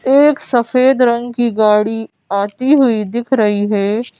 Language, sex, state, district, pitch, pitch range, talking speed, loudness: Hindi, female, Madhya Pradesh, Bhopal, 235 Hz, 210-255 Hz, 145 wpm, -14 LUFS